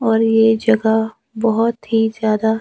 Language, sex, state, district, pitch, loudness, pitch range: Hindi, male, Himachal Pradesh, Shimla, 225 Hz, -16 LUFS, 220-225 Hz